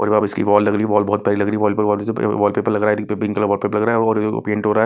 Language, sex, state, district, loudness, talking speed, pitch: Hindi, male, Punjab, Kapurthala, -18 LUFS, 360 wpm, 105 Hz